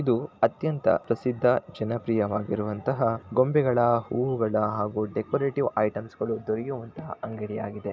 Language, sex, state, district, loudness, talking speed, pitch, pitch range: Kannada, male, Karnataka, Shimoga, -27 LUFS, 90 wpm, 115 Hz, 105-125 Hz